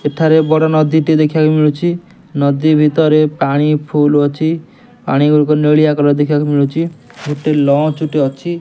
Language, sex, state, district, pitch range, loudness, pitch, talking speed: Odia, male, Odisha, Nuapada, 145-160 Hz, -13 LUFS, 155 Hz, 145 wpm